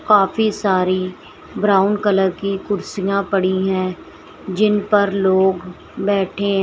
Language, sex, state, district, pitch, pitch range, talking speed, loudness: Hindi, female, Uttar Pradesh, Shamli, 195 Hz, 190-205 Hz, 115 wpm, -18 LUFS